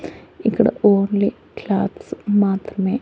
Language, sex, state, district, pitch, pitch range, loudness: Telugu, female, Andhra Pradesh, Annamaya, 200 Hz, 195-205 Hz, -19 LUFS